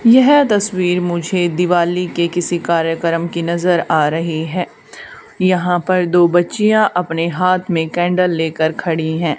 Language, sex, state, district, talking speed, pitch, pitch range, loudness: Hindi, female, Haryana, Charkhi Dadri, 145 wpm, 175 Hz, 165-180 Hz, -16 LUFS